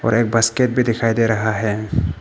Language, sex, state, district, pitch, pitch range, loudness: Hindi, male, Arunachal Pradesh, Papum Pare, 115 Hz, 110-115 Hz, -18 LUFS